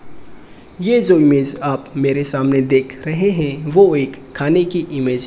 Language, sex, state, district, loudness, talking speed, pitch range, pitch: Hindi, male, Rajasthan, Bikaner, -16 LUFS, 170 wpm, 135-170 Hz, 145 Hz